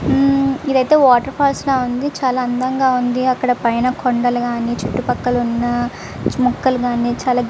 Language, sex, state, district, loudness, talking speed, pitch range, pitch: Telugu, female, Andhra Pradesh, Visakhapatnam, -17 LUFS, 150 wpm, 245-260 Hz, 250 Hz